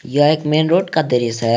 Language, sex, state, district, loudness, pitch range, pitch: Hindi, male, Jharkhand, Garhwa, -16 LUFS, 125-160 Hz, 150 Hz